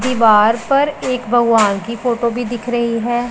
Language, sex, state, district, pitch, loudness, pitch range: Hindi, male, Punjab, Pathankot, 240 Hz, -15 LUFS, 230-245 Hz